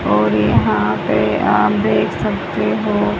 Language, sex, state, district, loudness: Hindi, male, Haryana, Rohtak, -16 LUFS